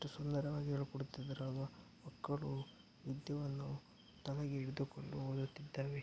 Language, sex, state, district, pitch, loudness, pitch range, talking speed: Kannada, male, Karnataka, Mysore, 140 Hz, -44 LUFS, 135-145 Hz, 90 wpm